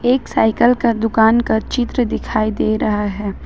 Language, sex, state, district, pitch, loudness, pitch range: Hindi, female, Jharkhand, Ranchi, 225 Hz, -16 LUFS, 215-240 Hz